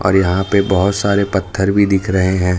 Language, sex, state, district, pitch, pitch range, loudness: Hindi, male, Chhattisgarh, Raipur, 95 Hz, 95-100 Hz, -15 LUFS